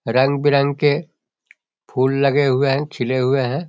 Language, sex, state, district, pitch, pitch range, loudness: Hindi, male, Bihar, Jahanabad, 140 Hz, 130-145 Hz, -18 LUFS